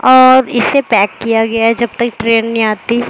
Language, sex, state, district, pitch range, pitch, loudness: Hindi, male, Maharashtra, Mumbai Suburban, 225-240 Hz, 230 Hz, -11 LUFS